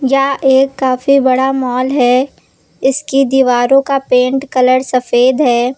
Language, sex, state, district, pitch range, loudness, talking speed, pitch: Hindi, female, Uttar Pradesh, Lucknow, 255-270 Hz, -12 LUFS, 135 wpm, 265 Hz